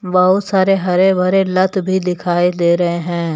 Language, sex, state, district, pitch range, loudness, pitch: Hindi, male, Jharkhand, Deoghar, 175-190 Hz, -15 LUFS, 180 Hz